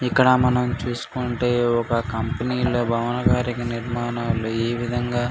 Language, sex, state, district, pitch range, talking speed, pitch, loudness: Telugu, male, Andhra Pradesh, Anantapur, 120-125 Hz, 135 wpm, 120 Hz, -22 LUFS